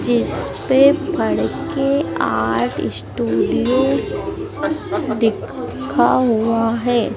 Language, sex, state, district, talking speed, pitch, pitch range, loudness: Hindi, female, Madhya Pradesh, Dhar, 60 wpm, 250 Hz, 230-280 Hz, -18 LUFS